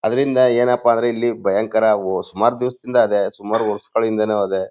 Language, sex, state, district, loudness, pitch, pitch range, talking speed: Kannada, male, Karnataka, Mysore, -18 LUFS, 115 Hz, 105-120 Hz, 155 wpm